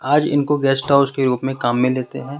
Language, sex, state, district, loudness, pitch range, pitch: Hindi, male, Rajasthan, Jaipur, -18 LUFS, 130-140 Hz, 135 Hz